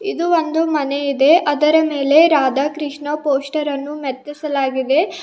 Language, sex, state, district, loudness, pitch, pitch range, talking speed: Kannada, female, Karnataka, Bidar, -17 LUFS, 295 Hz, 280-315 Hz, 125 wpm